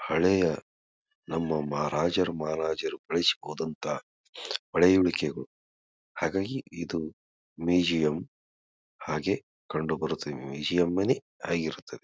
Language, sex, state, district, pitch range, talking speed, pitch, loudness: Kannada, male, Karnataka, Bijapur, 75-85 Hz, 85 wpm, 80 Hz, -29 LUFS